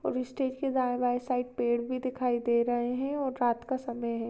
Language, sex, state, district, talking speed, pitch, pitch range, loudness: Hindi, female, Maharashtra, Chandrapur, 235 wpm, 245 Hz, 240-255 Hz, -30 LUFS